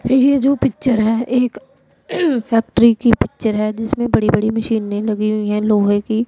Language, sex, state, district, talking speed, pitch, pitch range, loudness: Hindi, female, Punjab, Pathankot, 170 wpm, 225 Hz, 215-250 Hz, -16 LUFS